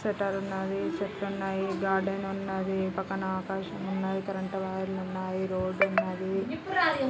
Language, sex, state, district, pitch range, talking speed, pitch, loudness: Telugu, female, Andhra Pradesh, Srikakulam, 190-195 Hz, 125 wpm, 195 Hz, -31 LUFS